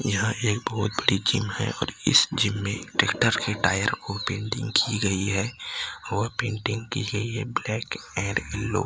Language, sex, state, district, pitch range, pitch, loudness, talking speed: Hindi, male, Maharashtra, Gondia, 105-115 Hz, 110 Hz, -25 LUFS, 175 wpm